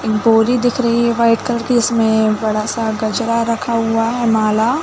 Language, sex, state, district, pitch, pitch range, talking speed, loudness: Hindi, female, Chhattisgarh, Bilaspur, 230 Hz, 220-235 Hz, 225 wpm, -15 LUFS